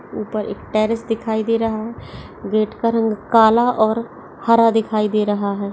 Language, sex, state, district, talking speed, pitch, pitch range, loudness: Hindi, female, Uttar Pradesh, Etah, 180 wpm, 220 Hz, 215-230 Hz, -18 LUFS